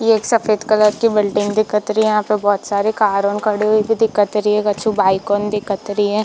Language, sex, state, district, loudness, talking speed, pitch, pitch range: Hindi, female, Chhattisgarh, Bilaspur, -16 LUFS, 260 wpm, 210 Hz, 205-215 Hz